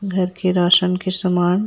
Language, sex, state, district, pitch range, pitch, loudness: Hindi, female, Jharkhand, Ranchi, 180-185 Hz, 185 Hz, -17 LUFS